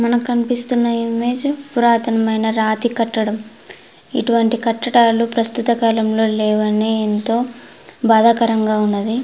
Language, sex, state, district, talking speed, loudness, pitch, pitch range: Telugu, female, Andhra Pradesh, Anantapur, 85 wpm, -16 LUFS, 230 Hz, 220-235 Hz